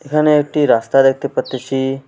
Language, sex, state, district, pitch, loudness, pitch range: Bengali, male, West Bengal, Alipurduar, 135 Hz, -15 LUFS, 135-150 Hz